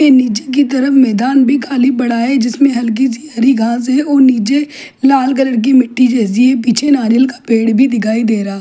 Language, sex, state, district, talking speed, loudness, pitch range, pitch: Hindi, female, Delhi, New Delhi, 200 wpm, -12 LUFS, 235-270 Hz, 255 Hz